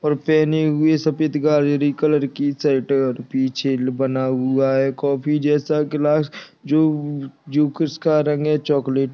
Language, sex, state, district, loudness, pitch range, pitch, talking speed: Hindi, male, Chhattisgarh, Kabirdham, -19 LUFS, 135-150 Hz, 145 Hz, 145 wpm